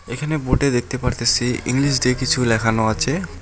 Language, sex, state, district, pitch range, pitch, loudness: Bengali, male, West Bengal, Alipurduar, 120-130 Hz, 125 Hz, -19 LUFS